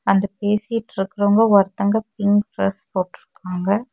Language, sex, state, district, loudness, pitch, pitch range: Tamil, female, Tamil Nadu, Kanyakumari, -20 LUFS, 200 Hz, 195-210 Hz